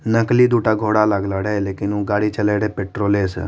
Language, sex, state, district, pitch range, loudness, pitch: Maithili, male, Bihar, Madhepura, 100-110 Hz, -18 LUFS, 105 Hz